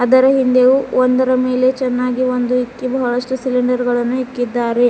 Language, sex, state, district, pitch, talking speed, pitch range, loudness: Kannada, female, Karnataka, Bidar, 255 Hz, 135 wpm, 245-255 Hz, -15 LUFS